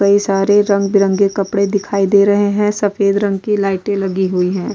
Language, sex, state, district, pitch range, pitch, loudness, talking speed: Hindi, female, Goa, North and South Goa, 195-205 Hz, 200 Hz, -14 LUFS, 200 wpm